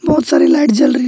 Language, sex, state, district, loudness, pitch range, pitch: Hindi, male, West Bengal, Alipurduar, -11 LUFS, 275-315 Hz, 305 Hz